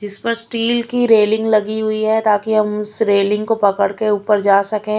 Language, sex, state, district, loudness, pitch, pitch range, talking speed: Hindi, female, Chhattisgarh, Raipur, -16 LUFS, 215 Hz, 210-220 Hz, 215 wpm